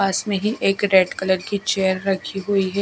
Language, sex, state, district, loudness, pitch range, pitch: Hindi, female, Odisha, Khordha, -20 LUFS, 190-200 Hz, 195 Hz